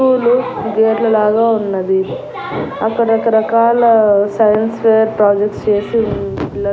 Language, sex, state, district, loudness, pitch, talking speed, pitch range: Telugu, female, Andhra Pradesh, Annamaya, -14 LUFS, 220 Hz, 115 wpm, 205-230 Hz